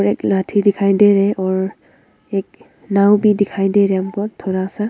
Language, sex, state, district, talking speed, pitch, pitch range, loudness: Hindi, female, Arunachal Pradesh, Longding, 195 wpm, 200 Hz, 190-205 Hz, -16 LUFS